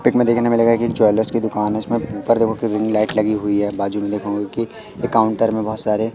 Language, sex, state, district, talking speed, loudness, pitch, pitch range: Hindi, male, Madhya Pradesh, Katni, 275 wpm, -18 LUFS, 110 Hz, 105-115 Hz